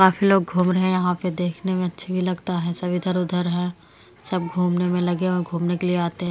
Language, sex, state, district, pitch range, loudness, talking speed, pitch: Hindi, female, Delhi, New Delhi, 175-185 Hz, -23 LUFS, 245 wpm, 180 Hz